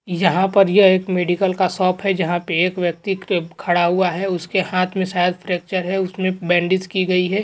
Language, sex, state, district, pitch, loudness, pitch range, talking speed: Hindi, male, Maharashtra, Dhule, 185 Hz, -18 LUFS, 175-190 Hz, 210 wpm